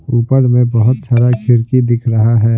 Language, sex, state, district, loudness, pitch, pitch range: Hindi, male, Bihar, Patna, -12 LUFS, 120 Hz, 115-125 Hz